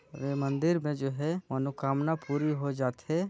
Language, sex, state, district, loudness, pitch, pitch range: Chhattisgarhi, male, Chhattisgarh, Sarguja, -31 LUFS, 145 Hz, 135-155 Hz